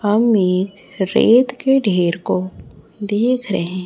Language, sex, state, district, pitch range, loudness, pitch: Hindi, male, Chhattisgarh, Raipur, 180-225 Hz, -17 LUFS, 195 Hz